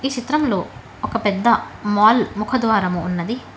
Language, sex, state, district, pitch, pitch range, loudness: Telugu, female, Telangana, Hyderabad, 225 Hz, 205-255 Hz, -19 LUFS